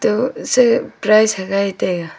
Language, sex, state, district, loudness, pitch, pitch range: Wancho, female, Arunachal Pradesh, Longding, -16 LUFS, 200 Hz, 190-220 Hz